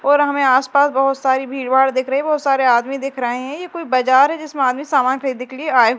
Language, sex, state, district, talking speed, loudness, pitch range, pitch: Hindi, female, Madhya Pradesh, Dhar, 250 wpm, -17 LUFS, 255-285 Hz, 270 Hz